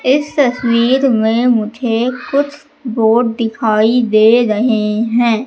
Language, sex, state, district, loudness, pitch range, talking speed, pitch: Hindi, female, Madhya Pradesh, Katni, -13 LUFS, 225-255 Hz, 110 wpm, 235 Hz